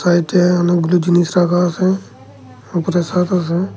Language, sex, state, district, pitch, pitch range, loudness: Bengali, male, Tripura, Unakoti, 175 Hz, 170-180 Hz, -15 LUFS